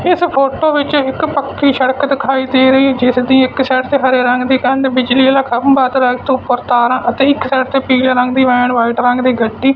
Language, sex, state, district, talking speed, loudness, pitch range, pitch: Punjabi, male, Punjab, Fazilka, 225 wpm, -12 LUFS, 250-275 Hz, 260 Hz